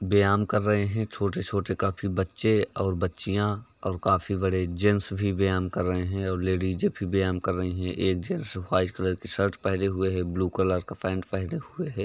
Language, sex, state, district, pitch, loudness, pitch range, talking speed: Hindi, male, Uttar Pradesh, Varanasi, 95 Hz, -27 LUFS, 95-100 Hz, 190 wpm